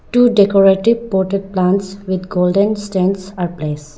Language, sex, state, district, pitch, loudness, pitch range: English, female, Arunachal Pradesh, Lower Dibang Valley, 195 Hz, -15 LUFS, 185-200 Hz